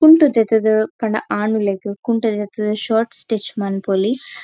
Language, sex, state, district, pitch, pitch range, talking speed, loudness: Tulu, female, Karnataka, Dakshina Kannada, 220 Hz, 205-230 Hz, 150 wpm, -18 LUFS